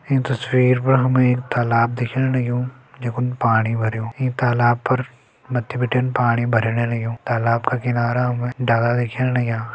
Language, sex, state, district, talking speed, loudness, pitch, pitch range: Hindi, male, Uttarakhand, Tehri Garhwal, 155 wpm, -20 LUFS, 125 Hz, 115-125 Hz